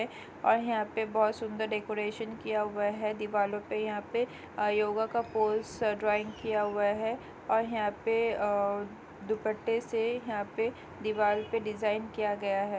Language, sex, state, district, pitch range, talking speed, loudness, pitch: Hindi, female, Chhattisgarh, Korba, 210-225 Hz, 165 wpm, -32 LUFS, 215 Hz